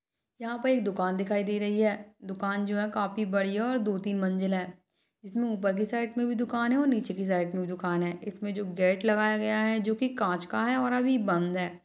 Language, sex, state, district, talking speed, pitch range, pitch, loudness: Hindi, female, Chhattisgarh, Balrampur, 260 wpm, 190-230 Hz, 205 Hz, -29 LUFS